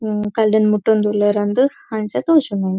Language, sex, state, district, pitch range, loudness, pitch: Tulu, female, Karnataka, Dakshina Kannada, 205-220 Hz, -17 LUFS, 215 Hz